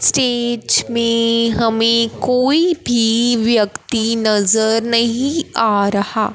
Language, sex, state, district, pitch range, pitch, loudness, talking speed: Hindi, male, Punjab, Fazilka, 225-240 Hz, 230 Hz, -15 LUFS, 95 wpm